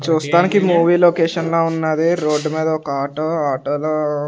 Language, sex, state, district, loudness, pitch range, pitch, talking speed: Telugu, male, Andhra Pradesh, Sri Satya Sai, -17 LUFS, 150-170 Hz, 160 Hz, 155 wpm